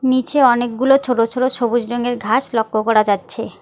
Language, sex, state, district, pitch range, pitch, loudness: Bengali, female, West Bengal, Alipurduar, 230-255 Hz, 240 Hz, -16 LUFS